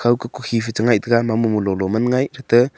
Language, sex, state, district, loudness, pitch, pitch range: Wancho, male, Arunachal Pradesh, Longding, -19 LUFS, 120 Hz, 115-120 Hz